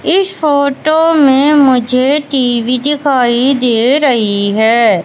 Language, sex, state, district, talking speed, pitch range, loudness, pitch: Hindi, female, Madhya Pradesh, Katni, 105 wpm, 245-295 Hz, -11 LUFS, 270 Hz